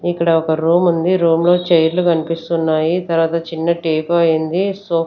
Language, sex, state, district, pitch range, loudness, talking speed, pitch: Telugu, female, Andhra Pradesh, Sri Satya Sai, 165-175 Hz, -16 LUFS, 140 wpm, 165 Hz